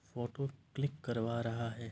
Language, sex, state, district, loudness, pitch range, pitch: Hindi, male, Uttar Pradesh, Varanasi, -39 LUFS, 115-140 Hz, 120 Hz